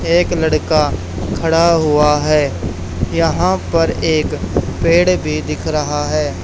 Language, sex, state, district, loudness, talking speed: Hindi, male, Haryana, Charkhi Dadri, -15 LUFS, 120 wpm